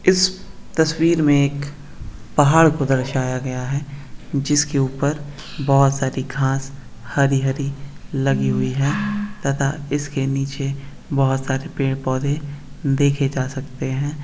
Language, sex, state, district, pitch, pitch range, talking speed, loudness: Hindi, male, Maharashtra, Solapur, 140 Hz, 135-145 Hz, 120 wpm, -20 LUFS